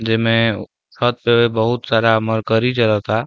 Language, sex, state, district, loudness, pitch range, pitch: Bhojpuri, male, Uttar Pradesh, Deoria, -16 LUFS, 110-120 Hz, 115 Hz